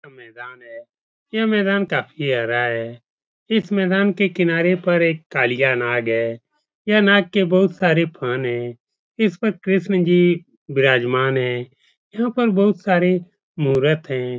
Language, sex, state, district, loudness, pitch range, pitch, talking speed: Hindi, male, Uttar Pradesh, Etah, -19 LUFS, 130-200 Hz, 175 Hz, 150 wpm